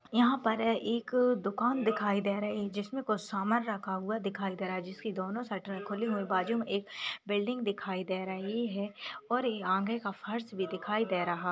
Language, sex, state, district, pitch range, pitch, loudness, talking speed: Hindi, female, Rajasthan, Nagaur, 195-230 Hz, 205 Hz, -33 LUFS, 200 wpm